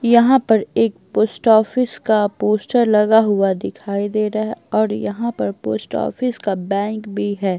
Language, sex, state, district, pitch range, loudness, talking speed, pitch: Hindi, female, Bihar, Patna, 200-225 Hz, -18 LUFS, 175 wpm, 215 Hz